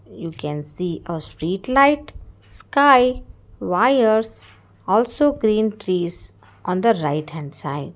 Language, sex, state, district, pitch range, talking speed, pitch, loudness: English, female, Karnataka, Bangalore, 150-230 Hz, 120 wpm, 180 Hz, -19 LUFS